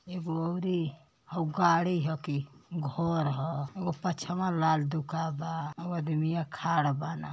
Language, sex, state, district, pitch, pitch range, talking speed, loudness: Bhojpuri, male, Uttar Pradesh, Ghazipur, 165 Hz, 155-170 Hz, 140 wpm, -31 LUFS